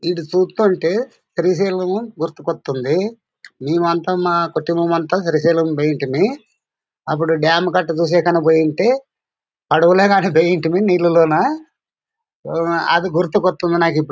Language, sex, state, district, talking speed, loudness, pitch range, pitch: Telugu, male, Andhra Pradesh, Anantapur, 75 wpm, -17 LUFS, 165-185 Hz, 170 Hz